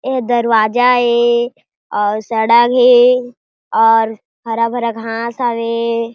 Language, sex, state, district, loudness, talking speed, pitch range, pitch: Chhattisgarhi, female, Chhattisgarh, Jashpur, -14 LUFS, 100 wpm, 225-245 Hz, 235 Hz